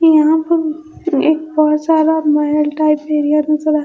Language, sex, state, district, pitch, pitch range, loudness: Hindi, female, Bihar, Katihar, 305 Hz, 300-315 Hz, -14 LUFS